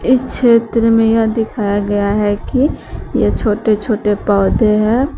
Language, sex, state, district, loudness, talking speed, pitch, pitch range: Hindi, female, Uttar Pradesh, Shamli, -14 LUFS, 150 wpm, 220 Hz, 205-230 Hz